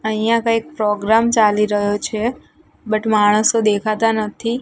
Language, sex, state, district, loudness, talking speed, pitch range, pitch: Gujarati, female, Gujarat, Gandhinagar, -17 LUFS, 130 wpm, 210-225 Hz, 215 Hz